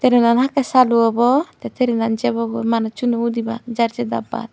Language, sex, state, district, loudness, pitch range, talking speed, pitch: Chakma, female, Tripura, Unakoti, -18 LUFS, 230-245 Hz, 160 wpm, 235 Hz